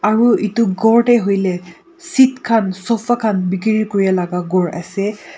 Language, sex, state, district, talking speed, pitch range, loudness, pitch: Nagamese, female, Nagaland, Kohima, 155 wpm, 185-230 Hz, -16 LUFS, 210 Hz